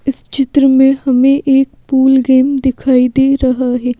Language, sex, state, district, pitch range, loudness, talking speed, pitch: Hindi, female, Madhya Pradesh, Bhopal, 260-270 Hz, -11 LUFS, 165 wpm, 265 Hz